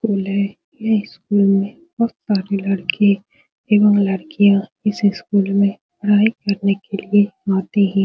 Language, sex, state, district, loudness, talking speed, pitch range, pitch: Hindi, female, Bihar, Supaul, -18 LUFS, 155 wpm, 195-210 Hz, 200 Hz